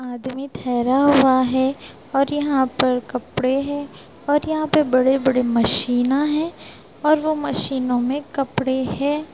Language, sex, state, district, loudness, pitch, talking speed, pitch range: Hindi, female, Bihar, Sitamarhi, -19 LUFS, 270 Hz, 135 wpm, 255-290 Hz